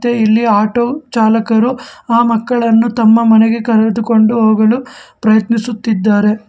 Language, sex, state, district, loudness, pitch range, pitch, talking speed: Kannada, male, Karnataka, Bangalore, -12 LUFS, 220-235 Hz, 225 Hz, 100 wpm